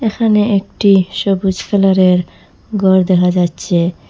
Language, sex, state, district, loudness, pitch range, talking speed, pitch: Bengali, female, Assam, Hailakandi, -13 LUFS, 180-200 Hz, 115 wpm, 190 Hz